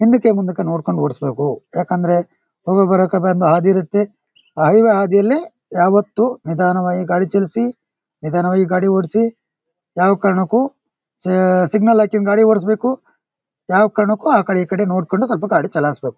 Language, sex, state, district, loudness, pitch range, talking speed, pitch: Kannada, male, Karnataka, Shimoga, -16 LUFS, 180-215 Hz, 140 wpm, 190 Hz